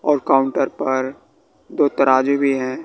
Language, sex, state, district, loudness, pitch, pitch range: Hindi, male, Bihar, West Champaran, -18 LUFS, 135 Hz, 130-140 Hz